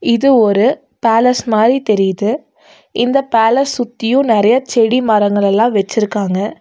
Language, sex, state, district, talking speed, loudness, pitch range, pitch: Tamil, female, Tamil Nadu, Nilgiris, 120 wpm, -13 LUFS, 210-250 Hz, 225 Hz